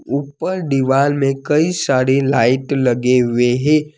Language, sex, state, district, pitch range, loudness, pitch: Hindi, male, Jharkhand, Deoghar, 130-150 Hz, -16 LUFS, 135 Hz